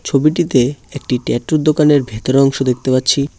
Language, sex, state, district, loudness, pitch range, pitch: Bengali, male, West Bengal, Cooch Behar, -15 LUFS, 130-150 Hz, 135 Hz